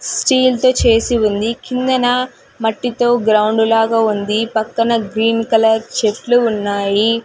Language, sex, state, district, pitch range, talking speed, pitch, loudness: Telugu, female, Andhra Pradesh, Sri Satya Sai, 220-245 Hz, 110 wpm, 230 Hz, -15 LUFS